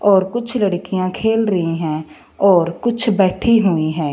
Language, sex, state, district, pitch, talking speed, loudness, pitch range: Hindi, female, Punjab, Fazilka, 190 Hz, 160 wpm, -17 LUFS, 165-220 Hz